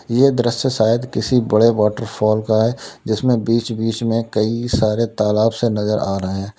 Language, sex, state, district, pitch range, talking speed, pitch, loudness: Hindi, male, Uttar Pradesh, Lalitpur, 110-115 Hz, 180 wpm, 115 Hz, -18 LUFS